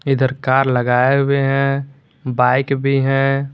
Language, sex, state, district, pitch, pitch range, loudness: Hindi, male, Jharkhand, Garhwa, 135 Hz, 130-140 Hz, -16 LUFS